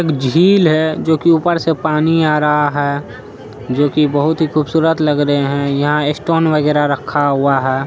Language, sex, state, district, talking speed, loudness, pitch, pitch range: Hindi, female, Bihar, Araria, 175 wpm, -14 LUFS, 150 Hz, 140-160 Hz